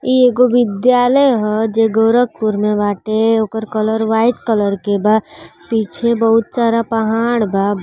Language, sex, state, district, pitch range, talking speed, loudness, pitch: Bhojpuri, female, Uttar Pradesh, Gorakhpur, 215-235 Hz, 145 wpm, -15 LUFS, 225 Hz